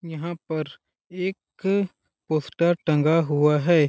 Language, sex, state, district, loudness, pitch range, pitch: Hindi, male, Chhattisgarh, Balrampur, -24 LUFS, 155-175 Hz, 165 Hz